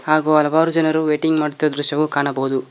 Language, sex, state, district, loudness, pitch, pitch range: Kannada, male, Karnataka, Koppal, -18 LUFS, 155 Hz, 145-155 Hz